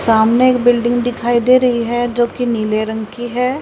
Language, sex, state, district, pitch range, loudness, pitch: Hindi, female, Haryana, Rohtak, 235-245 Hz, -15 LUFS, 240 Hz